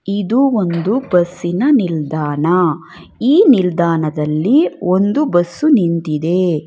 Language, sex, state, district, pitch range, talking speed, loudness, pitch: Kannada, female, Karnataka, Bangalore, 165-240 Hz, 80 wpm, -14 LUFS, 180 Hz